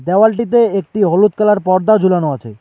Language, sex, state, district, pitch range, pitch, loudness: Bengali, male, West Bengal, Alipurduar, 180-215 Hz, 195 Hz, -13 LUFS